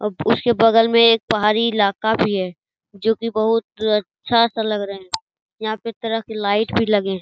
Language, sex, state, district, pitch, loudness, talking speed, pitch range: Hindi, male, Bihar, Jamui, 220 Hz, -19 LUFS, 200 wpm, 205-225 Hz